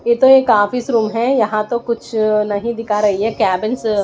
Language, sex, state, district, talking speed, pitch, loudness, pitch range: Hindi, female, Odisha, Malkangiri, 225 wpm, 220 Hz, -15 LUFS, 210-235 Hz